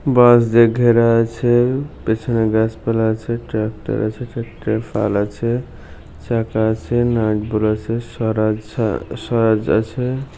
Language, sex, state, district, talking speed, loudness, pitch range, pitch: Bengali, male, West Bengal, Jhargram, 125 wpm, -18 LUFS, 110-120 Hz, 115 Hz